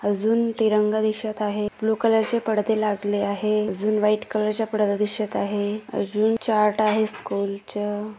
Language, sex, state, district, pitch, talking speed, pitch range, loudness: Hindi, female, Maharashtra, Nagpur, 215 Hz, 160 wpm, 210-215 Hz, -23 LUFS